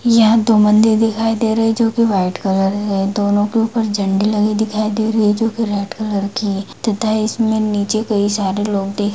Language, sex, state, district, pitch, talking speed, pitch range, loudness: Hindi, female, Bihar, Lakhisarai, 215 Hz, 225 wpm, 205-225 Hz, -16 LUFS